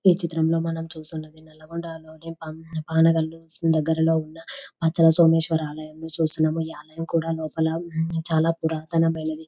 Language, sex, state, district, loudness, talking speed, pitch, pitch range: Telugu, female, Telangana, Nalgonda, -23 LUFS, 140 wpm, 160 Hz, 160-165 Hz